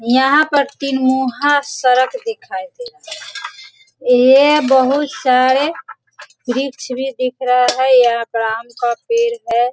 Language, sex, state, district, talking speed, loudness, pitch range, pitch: Hindi, female, Bihar, Sitamarhi, 130 wpm, -15 LUFS, 250-305 Hz, 265 Hz